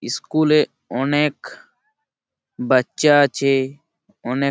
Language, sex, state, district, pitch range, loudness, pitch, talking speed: Bengali, male, West Bengal, Malda, 135-170 Hz, -18 LUFS, 150 Hz, 95 wpm